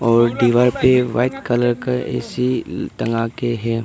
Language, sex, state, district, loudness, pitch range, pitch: Hindi, male, Arunachal Pradesh, Papum Pare, -18 LUFS, 115-125 Hz, 120 Hz